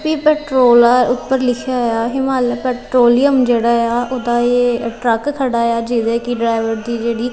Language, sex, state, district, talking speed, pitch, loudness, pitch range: Punjabi, female, Punjab, Kapurthala, 170 wpm, 245 Hz, -15 LUFS, 235-255 Hz